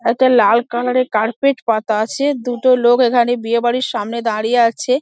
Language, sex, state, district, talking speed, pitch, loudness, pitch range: Bengali, female, West Bengal, Dakshin Dinajpur, 190 wpm, 240 Hz, -15 LUFS, 230-255 Hz